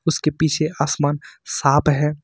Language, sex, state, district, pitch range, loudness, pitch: Hindi, male, Jharkhand, Ranchi, 145-155 Hz, -20 LUFS, 150 Hz